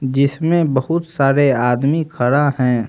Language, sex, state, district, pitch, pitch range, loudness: Hindi, male, Haryana, Jhajjar, 140 Hz, 130-155 Hz, -16 LUFS